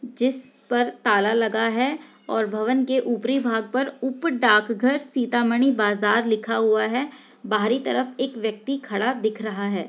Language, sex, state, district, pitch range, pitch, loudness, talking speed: Hindi, female, Bihar, Sitamarhi, 220-260 Hz, 240 Hz, -22 LUFS, 160 wpm